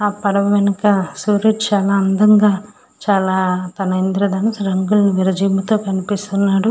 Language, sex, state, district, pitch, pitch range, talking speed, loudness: Telugu, female, Andhra Pradesh, Srikakulam, 200 Hz, 190-210 Hz, 90 wpm, -16 LUFS